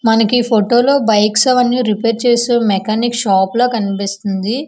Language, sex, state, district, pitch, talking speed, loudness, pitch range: Telugu, female, Andhra Pradesh, Visakhapatnam, 230 Hz, 155 wpm, -14 LUFS, 210-245 Hz